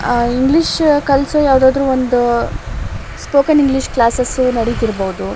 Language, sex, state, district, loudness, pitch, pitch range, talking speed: Kannada, female, Karnataka, Shimoga, -14 LUFS, 260 Hz, 240-280 Hz, 110 wpm